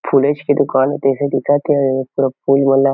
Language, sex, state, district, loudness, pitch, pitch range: Chhattisgarhi, male, Chhattisgarh, Kabirdham, -15 LUFS, 135 Hz, 135-145 Hz